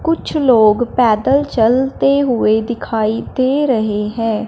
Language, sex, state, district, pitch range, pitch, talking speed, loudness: Hindi, female, Punjab, Fazilka, 220-270 Hz, 235 Hz, 120 wpm, -15 LUFS